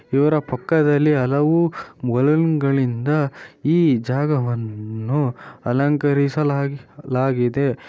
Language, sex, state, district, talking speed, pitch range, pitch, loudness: Kannada, male, Karnataka, Shimoga, 75 wpm, 125-150 Hz, 140 Hz, -20 LUFS